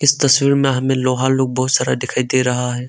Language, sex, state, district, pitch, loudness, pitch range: Hindi, male, Arunachal Pradesh, Longding, 130 Hz, -16 LUFS, 125-135 Hz